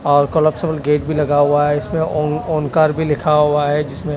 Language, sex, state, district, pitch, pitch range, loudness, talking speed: Hindi, male, Delhi, New Delhi, 150 Hz, 145-155 Hz, -16 LUFS, 200 wpm